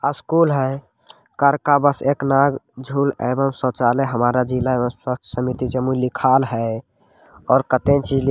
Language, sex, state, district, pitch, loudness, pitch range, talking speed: Magahi, male, Bihar, Jamui, 130 Hz, -19 LUFS, 125-140 Hz, 135 wpm